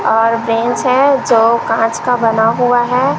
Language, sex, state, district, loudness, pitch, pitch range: Hindi, female, Chhattisgarh, Raipur, -13 LUFS, 235 Hz, 225-245 Hz